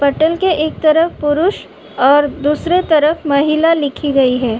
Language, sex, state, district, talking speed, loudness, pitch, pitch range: Hindi, female, Uttar Pradesh, Budaun, 155 wpm, -14 LUFS, 300 Hz, 280-325 Hz